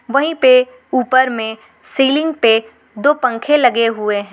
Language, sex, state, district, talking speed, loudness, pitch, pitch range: Hindi, female, Jharkhand, Garhwa, 150 wpm, -14 LUFS, 255 Hz, 225-270 Hz